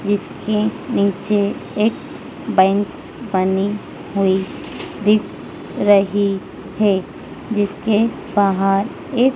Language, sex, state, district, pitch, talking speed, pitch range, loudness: Hindi, female, Madhya Pradesh, Dhar, 205 Hz, 75 wpm, 195-215 Hz, -19 LUFS